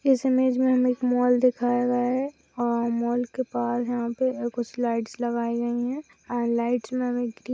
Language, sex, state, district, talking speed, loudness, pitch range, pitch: Hindi, female, Bihar, Saharsa, 200 wpm, -25 LUFS, 240-255 Hz, 245 Hz